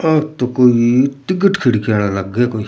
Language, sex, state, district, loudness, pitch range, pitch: Rajasthani, male, Rajasthan, Churu, -15 LUFS, 110-155 Hz, 125 Hz